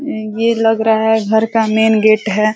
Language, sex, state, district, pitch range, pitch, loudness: Hindi, female, Uttar Pradesh, Ghazipur, 215-225 Hz, 220 Hz, -13 LUFS